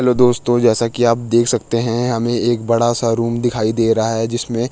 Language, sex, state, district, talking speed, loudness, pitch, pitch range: Hindi, male, Uttarakhand, Tehri Garhwal, 240 wpm, -16 LUFS, 115 Hz, 115-120 Hz